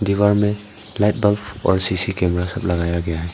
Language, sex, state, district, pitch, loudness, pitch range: Hindi, male, Arunachal Pradesh, Papum Pare, 100 Hz, -19 LUFS, 90-105 Hz